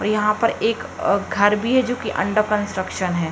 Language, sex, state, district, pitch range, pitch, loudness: Hindi, female, Uttar Pradesh, Hamirpur, 200-220 Hz, 210 Hz, -20 LUFS